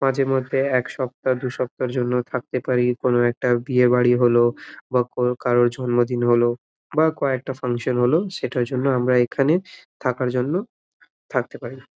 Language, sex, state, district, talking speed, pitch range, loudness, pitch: Bengali, male, West Bengal, Malda, 155 wpm, 120-135 Hz, -21 LUFS, 125 Hz